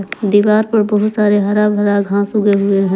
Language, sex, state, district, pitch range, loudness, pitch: Hindi, female, Jharkhand, Palamu, 200-210 Hz, -14 LUFS, 205 Hz